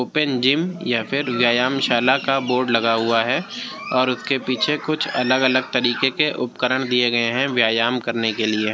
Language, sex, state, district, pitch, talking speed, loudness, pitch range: Hindi, male, Uttar Pradesh, Jyotiba Phule Nagar, 125 Hz, 170 wpm, -19 LUFS, 120-135 Hz